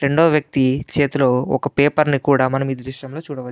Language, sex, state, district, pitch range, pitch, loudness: Telugu, male, Andhra Pradesh, Anantapur, 135-145 Hz, 140 Hz, -18 LUFS